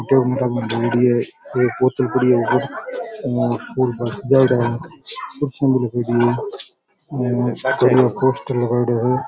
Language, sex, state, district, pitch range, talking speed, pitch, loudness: Rajasthani, male, Rajasthan, Churu, 120-130 Hz, 60 wpm, 125 Hz, -19 LUFS